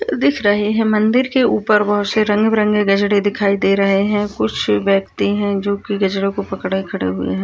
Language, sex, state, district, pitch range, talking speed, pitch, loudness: Hindi, female, Bihar, Kishanganj, 195-210 Hz, 210 wpm, 205 Hz, -16 LUFS